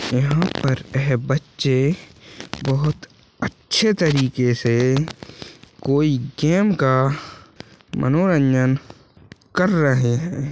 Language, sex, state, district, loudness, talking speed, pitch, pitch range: Hindi, male, Chhattisgarh, Bastar, -20 LUFS, 85 wpm, 135 Hz, 130-150 Hz